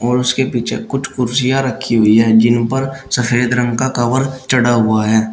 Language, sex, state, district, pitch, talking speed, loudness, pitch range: Hindi, male, Uttar Pradesh, Shamli, 125 Hz, 180 wpm, -14 LUFS, 115-130 Hz